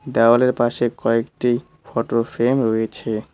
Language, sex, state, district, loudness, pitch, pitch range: Bengali, male, West Bengal, Cooch Behar, -20 LUFS, 115 Hz, 115-125 Hz